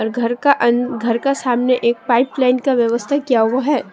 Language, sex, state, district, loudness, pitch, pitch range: Hindi, female, Assam, Sonitpur, -16 LUFS, 245 Hz, 235-265 Hz